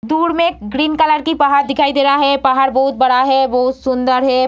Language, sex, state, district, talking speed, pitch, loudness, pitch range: Hindi, female, Bihar, Samastipur, 255 wpm, 275 Hz, -14 LUFS, 260-295 Hz